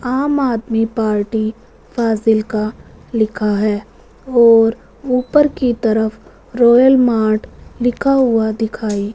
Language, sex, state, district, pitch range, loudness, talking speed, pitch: Hindi, female, Punjab, Fazilka, 215-245 Hz, -15 LUFS, 100 wpm, 225 Hz